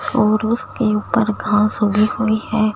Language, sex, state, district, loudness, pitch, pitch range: Hindi, female, Punjab, Fazilka, -18 LUFS, 215 Hz, 210-220 Hz